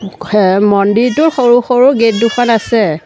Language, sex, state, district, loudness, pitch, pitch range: Assamese, female, Assam, Sonitpur, -10 LUFS, 230 Hz, 205-245 Hz